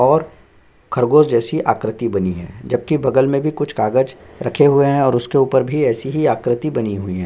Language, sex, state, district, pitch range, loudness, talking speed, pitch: Hindi, male, Chhattisgarh, Sukma, 115-140 Hz, -17 LUFS, 205 wpm, 130 Hz